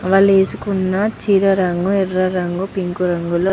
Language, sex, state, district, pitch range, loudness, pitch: Telugu, female, Andhra Pradesh, Chittoor, 180-195 Hz, -17 LUFS, 190 Hz